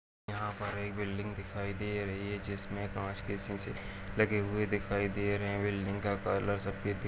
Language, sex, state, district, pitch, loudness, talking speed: Kumaoni, male, Uttarakhand, Uttarkashi, 100 Hz, -36 LUFS, 205 wpm